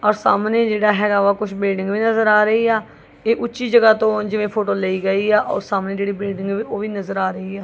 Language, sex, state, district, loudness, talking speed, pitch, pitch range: Punjabi, female, Punjab, Kapurthala, -18 LUFS, 235 wpm, 210 Hz, 200-215 Hz